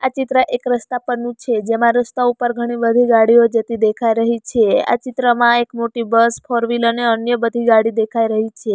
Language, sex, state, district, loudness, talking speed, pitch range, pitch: Gujarati, female, Gujarat, Valsad, -16 LUFS, 200 wpm, 230-240 Hz, 235 Hz